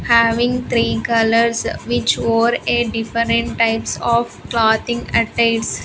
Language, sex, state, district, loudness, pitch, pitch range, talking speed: English, female, Andhra Pradesh, Sri Satya Sai, -17 LUFS, 230 Hz, 230-235 Hz, 115 wpm